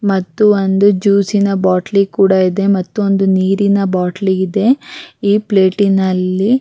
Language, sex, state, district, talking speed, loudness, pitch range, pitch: Kannada, female, Karnataka, Raichur, 125 wpm, -13 LUFS, 190-205 Hz, 195 Hz